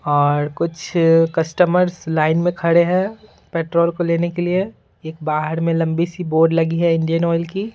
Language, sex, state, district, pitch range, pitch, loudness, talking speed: Hindi, male, Bihar, Patna, 165-175 Hz, 170 Hz, -18 LUFS, 170 wpm